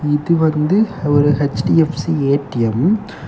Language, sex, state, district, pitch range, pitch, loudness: Tamil, male, Tamil Nadu, Kanyakumari, 145-165 Hz, 150 Hz, -16 LUFS